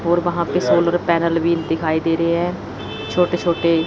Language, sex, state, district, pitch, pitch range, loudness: Hindi, female, Chandigarh, Chandigarh, 170 Hz, 165-175 Hz, -19 LUFS